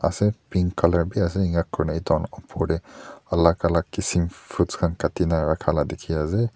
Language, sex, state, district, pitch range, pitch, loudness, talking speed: Nagamese, male, Nagaland, Dimapur, 85-95 Hz, 85 Hz, -23 LUFS, 190 wpm